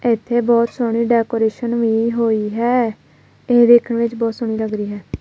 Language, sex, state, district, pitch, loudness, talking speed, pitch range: Punjabi, female, Punjab, Kapurthala, 230 Hz, -17 LUFS, 170 wpm, 220-235 Hz